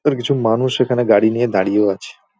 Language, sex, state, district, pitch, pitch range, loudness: Bengali, male, West Bengal, Paschim Medinipur, 120 Hz, 105-130 Hz, -16 LUFS